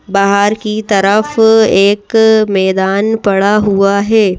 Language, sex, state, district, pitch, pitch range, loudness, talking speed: Hindi, female, Madhya Pradesh, Bhopal, 205 Hz, 195-220 Hz, -10 LUFS, 110 wpm